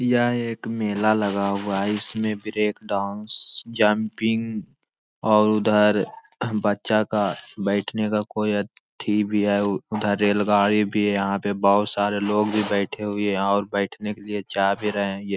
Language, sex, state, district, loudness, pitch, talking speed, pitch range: Hindi, male, Jharkhand, Jamtara, -23 LUFS, 105 Hz, 160 wpm, 100-105 Hz